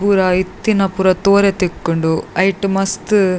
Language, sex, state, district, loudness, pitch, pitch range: Tulu, female, Karnataka, Dakshina Kannada, -15 LUFS, 190 Hz, 185-200 Hz